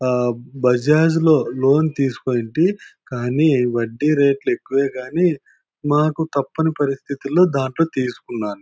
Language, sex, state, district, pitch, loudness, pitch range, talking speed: Telugu, male, Andhra Pradesh, Anantapur, 140 Hz, -19 LUFS, 125-155 Hz, 110 wpm